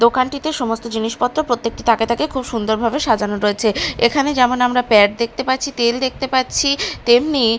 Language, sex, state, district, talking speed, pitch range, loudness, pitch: Bengali, female, Bihar, Katihar, 165 wpm, 230-260 Hz, -17 LUFS, 240 Hz